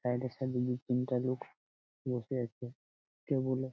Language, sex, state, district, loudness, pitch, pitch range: Bengali, male, West Bengal, Malda, -36 LUFS, 125 Hz, 125-130 Hz